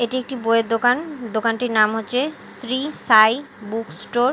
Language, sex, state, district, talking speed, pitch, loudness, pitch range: Bengali, female, Odisha, Malkangiri, 165 wpm, 235 Hz, -20 LUFS, 225-255 Hz